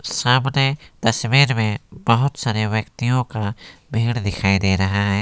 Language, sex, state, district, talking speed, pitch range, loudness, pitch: Hindi, male, West Bengal, Alipurduar, 140 wpm, 105-125 Hz, -19 LUFS, 115 Hz